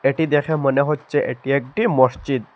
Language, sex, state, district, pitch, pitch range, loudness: Bengali, male, Assam, Hailakandi, 140 Hz, 135-145 Hz, -19 LUFS